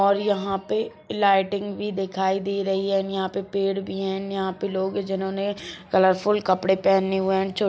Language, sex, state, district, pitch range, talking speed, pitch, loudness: Hindi, male, Chhattisgarh, Kabirdham, 190-200 Hz, 225 wpm, 195 Hz, -24 LUFS